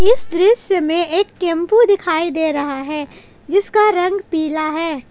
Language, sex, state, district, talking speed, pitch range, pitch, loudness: Hindi, female, Jharkhand, Palamu, 150 wpm, 315-395 Hz, 340 Hz, -16 LUFS